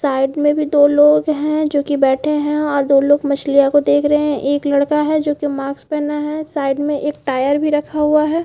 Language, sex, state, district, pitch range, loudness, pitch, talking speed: Hindi, female, Chhattisgarh, Bilaspur, 280-300 Hz, -16 LUFS, 295 Hz, 240 wpm